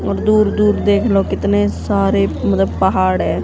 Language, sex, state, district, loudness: Hindi, female, Haryana, Jhajjar, -15 LUFS